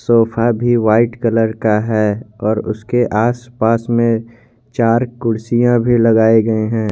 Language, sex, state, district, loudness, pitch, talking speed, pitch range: Hindi, male, Jharkhand, Garhwa, -15 LUFS, 115 Hz, 140 wpm, 110-120 Hz